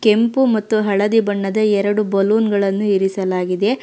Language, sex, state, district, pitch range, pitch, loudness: Kannada, female, Karnataka, Bangalore, 195-215 Hz, 205 Hz, -17 LUFS